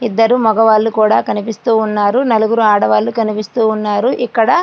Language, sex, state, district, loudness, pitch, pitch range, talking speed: Telugu, female, Andhra Pradesh, Srikakulam, -13 LUFS, 220 Hz, 215-225 Hz, 115 wpm